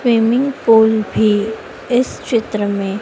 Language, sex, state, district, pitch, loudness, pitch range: Hindi, female, Madhya Pradesh, Dhar, 220 Hz, -15 LUFS, 210-240 Hz